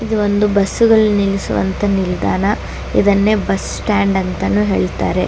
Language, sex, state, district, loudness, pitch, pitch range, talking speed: Kannada, female, Karnataka, Dakshina Kannada, -15 LUFS, 200 Hz, 190-210 Hz, 135 wpm